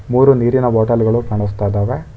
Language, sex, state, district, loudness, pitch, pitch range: Kannada, male, Karnataka, Bangalore, -15 LUFS, 115 Hz, 105-125 Hz